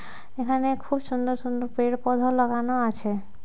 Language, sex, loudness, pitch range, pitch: Bengali, female, -26 LUFS, 245-255 Hz, 250 Hz